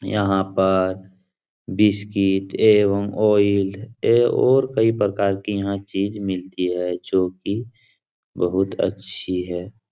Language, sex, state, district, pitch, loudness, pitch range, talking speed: Hindi, male, Bihar, Supaul, 100 Hz, -21 LUFS, 95-105 Hz, 110 wpm